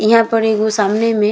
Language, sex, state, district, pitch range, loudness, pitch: Bhojpuri, female, Bihar, East Champaran, 210-225 Hz, -14 LUFS, 220 Hz